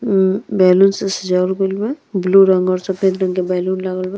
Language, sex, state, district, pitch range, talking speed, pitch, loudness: Bhojpuri, female, Uttar Pradesh, Deoria, 185-195 Hz, 215 wpm, 190 Hz, -16 LUFS